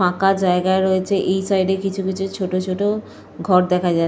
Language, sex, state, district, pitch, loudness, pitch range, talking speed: Bengali, female, Jharkhand, Jamtara, 190 Hz, -19 LUFS, 185-195 Hz, 160 wpm